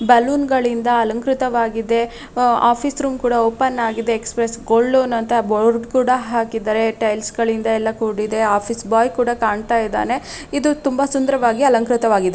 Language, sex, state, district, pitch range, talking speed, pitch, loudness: Kannada, female, Karnataka, Raichur, 225-250 Hz, 140 wpm, 235 Hz, -18 LUFS